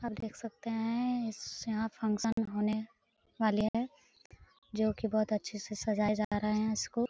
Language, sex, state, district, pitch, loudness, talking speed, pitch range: Hindi, female, Bihar, Lakhisarai, 220 Hz, -34 LUFS, 170 wpm, 215-230 Hz